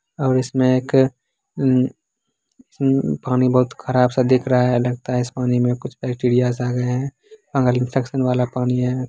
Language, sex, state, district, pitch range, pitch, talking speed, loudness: Angika, male, Bihar, Begusarai, 125-135 Hz, 125 Hz, 170 wpm, -19 LUFS